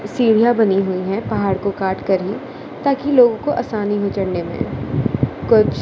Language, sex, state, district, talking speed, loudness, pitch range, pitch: Hindi, female, Gujarat, Gandhinagar, 165 wpm, -18 LUFS, 195-235 Hz, 205 Hz